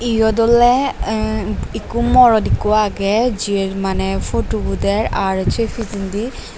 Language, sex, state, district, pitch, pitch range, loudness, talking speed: Chakma, female, Tripura, Dhalai, 220 Hz, 200-235 Hz, -17 LUFS, 135 wpm